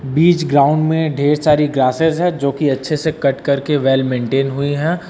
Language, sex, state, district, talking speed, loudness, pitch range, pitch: Hindi, male, Uttar Pradesh, Lucknow, 210 wpm, -16 LUFS, 140-160 Hz, 145 Hz